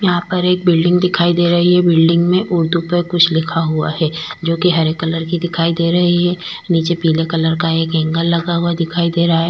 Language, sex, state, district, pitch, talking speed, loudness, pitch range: Hindi, female, Goa, North and South Goa, 170 Hz, 235 wpm, -15 LUFS, 165-175 Hz